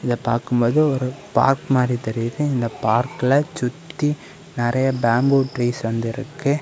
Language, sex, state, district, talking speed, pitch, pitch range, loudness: Tamil, male, Tamil Nadu, Kanyakumari, 125 wpm, 125 Hz, 120-140 Hz, -20 LUFS